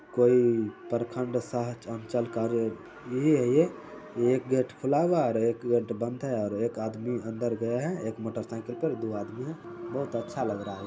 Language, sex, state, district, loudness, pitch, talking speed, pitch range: Hindi, male, Bihar, Saran, -29 LUFS, 120 Hz, 175 wpm, 115-125 Hz